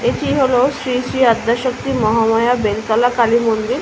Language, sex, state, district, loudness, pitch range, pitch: Bengali, female, West Bengal, Malda, -16 LUFS, 225-250 Hz, 235 Hz